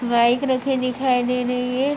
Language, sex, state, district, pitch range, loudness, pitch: Hindi, female, Jharkhand, Jamtara, 245-260 Hz, -20 LUFS, 250 Hz